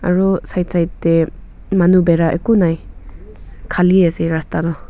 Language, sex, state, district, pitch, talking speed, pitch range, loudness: Nagamese, female, Nagaland, Kohima, 165 Hz, 145 wpm, 160-180 Hz, -15 LUFS